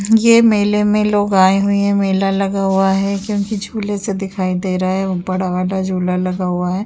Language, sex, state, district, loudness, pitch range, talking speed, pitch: Hindi, female, Uttar Pradesh, Jyotiba Phule Nagar, -16 LUFS, 185-205 Hz, 210 wpm, 195 Hz